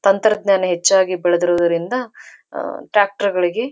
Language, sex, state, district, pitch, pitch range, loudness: Kannada, female, Karnataka, Dharwad, 195 Hz, 175-205 Hz, -17 LUFS